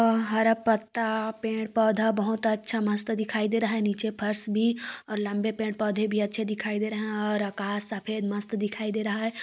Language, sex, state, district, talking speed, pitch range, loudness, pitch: Hindi, female, Chhattisgarh, Korba, 205 wpm, 210-220 Hz, -28 LUFS, 215 Hz